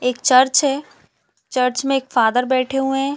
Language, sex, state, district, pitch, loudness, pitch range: Hindi, female, Chhattisgarh, Balrampur, 265 Hz, -17 LUFS, 250-275 Hz